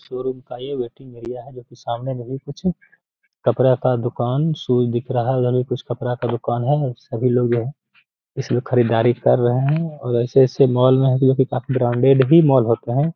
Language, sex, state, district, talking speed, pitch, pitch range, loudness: Hindi, male, Bihar, Gaya, 195 wpm, 125 Hz, 120-135 Hz, -19 LUFS